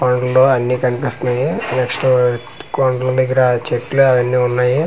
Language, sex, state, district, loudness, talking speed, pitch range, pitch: Telugu, male, Andhra Pradesh, Manyam, -15 LUFS, 125 wpm, 125-130 Hz, 125 Hz